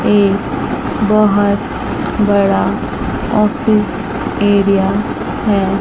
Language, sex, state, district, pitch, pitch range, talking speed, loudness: Hindi, female, Chandigarh, Chandigarh, 205 Hz, 200-215 Hz, 60 wpm, -15 LUFS